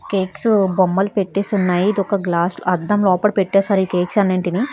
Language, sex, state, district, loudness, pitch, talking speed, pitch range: Telugu, female, Telangana, Hyderabad, -17 LUFS, 195 Hz, 150 wpm, 185-205 Hz